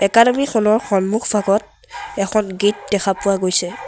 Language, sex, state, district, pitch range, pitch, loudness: Assamese, male, Assam, Sonitpur, 195-220 Hz, 205 Hz, -17 LUFS